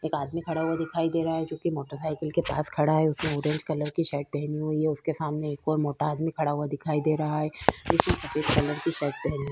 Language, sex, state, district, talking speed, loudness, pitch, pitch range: Hindi, female, Uttar Pradesh, Jyotiba Phule Nagar, 265 wpm, -27 LUFS, 155 Hz, 150-160 Hz